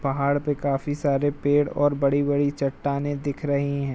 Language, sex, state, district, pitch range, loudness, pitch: Hindi, male, Uttar Pradesh, Jalaun, 140-145 Hz, -24 LUFS, 140 Hz